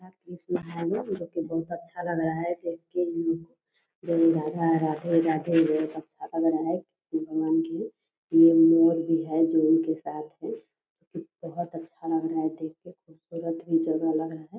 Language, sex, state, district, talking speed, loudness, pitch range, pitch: Hindi, female, Bihar, Purnia, 195 wpm, -26 LUFS, 160-175 Hz, 165 Hz